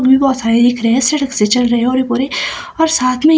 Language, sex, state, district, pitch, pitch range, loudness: Hindi, female, Himachal Pradesh, Shimla, 255 Hz, 245-295 Hz, -13 LUFS